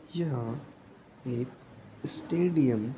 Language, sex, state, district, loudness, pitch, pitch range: Hindi, male, Uttar Pradesh, Etah, -31 LUFS, 130 Hz, 120-155 Hz